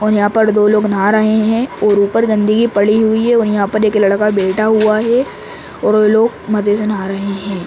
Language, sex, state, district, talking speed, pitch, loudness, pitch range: Hindi, male, Uttar Pradesh, Ghazipur, 240 wpm, 215 Hz, -13 LUFS, 205-220 Hz